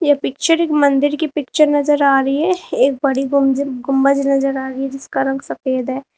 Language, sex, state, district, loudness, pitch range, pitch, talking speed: Hindi, female, Uttar Pradesh, Lalitpur, -16 LUFS, 270-290 Hz, 275 Hz, 215 wpm